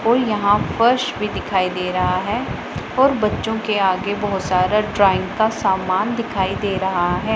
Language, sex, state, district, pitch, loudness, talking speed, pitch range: Hindi, female, Punjab, Pathankot, 205 Hz, -19 LUFS, 170 wpm, 190-220 Hz